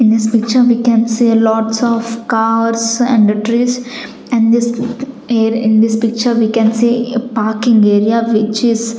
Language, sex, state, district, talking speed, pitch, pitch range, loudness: English, female, Chandigarh, Chandigarh, 160 wpm, 230 Hz, 225-240 Hz, -13 LUFS